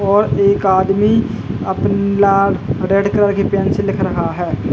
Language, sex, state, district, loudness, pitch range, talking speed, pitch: Hindi, male, Uttar Pradesh, Jalaun, -15 LUFS, 195-200 Hz, 165 wpm, 200 Hz